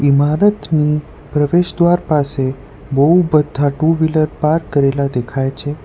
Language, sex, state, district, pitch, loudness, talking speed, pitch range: Gujarati, male, Gujarat, Valsad, 150 Hz, -15 LUFS, 115 wpm, 140-160 Hz